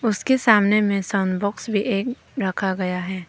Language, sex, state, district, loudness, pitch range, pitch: Hindi, female, Arunachal Pradesh, Papum Pare, -21 LUFS, 190-215 Hz, 200 Hz